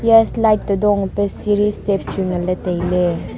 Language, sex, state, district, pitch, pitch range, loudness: Wancho, female, Arunachal Pradesh, Longding, 200 Hz, 180-210 Hz, -18 LUFS